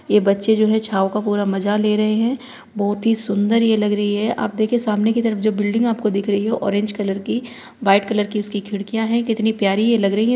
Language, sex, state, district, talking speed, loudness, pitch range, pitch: Hindi, female, Uttar Pradesh, Hamirpur, 255 wpm, -19 LUFS, 205-225 Hz, 215 Hz